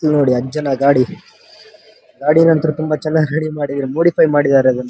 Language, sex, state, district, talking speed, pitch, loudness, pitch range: Kannada, male, Karnataka, Dharwad, 135 wpm, 150 Hz, -15 LUFS, 135-155 Hz